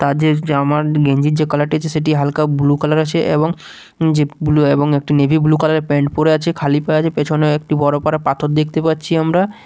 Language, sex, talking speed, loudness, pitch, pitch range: Bengali, male, 215 wpm, -15 LUFS, 150 Hz, 145-155 Hz